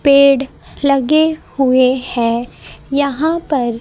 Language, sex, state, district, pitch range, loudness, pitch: Hindi, female, Haryana, Jhajjar, 255-285 Hz, -15 LUFS, 275 Hz